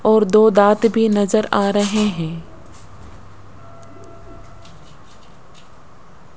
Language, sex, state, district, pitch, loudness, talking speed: Hindi, female, Rajasthan, Jaipur, 165 Hz, -16 LUFS, 75 wpm